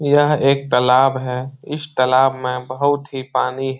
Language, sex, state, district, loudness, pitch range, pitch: Hindi, male, Bihar, Jahanabad, -18 LUFS, 130-140 Hz, 135 Hz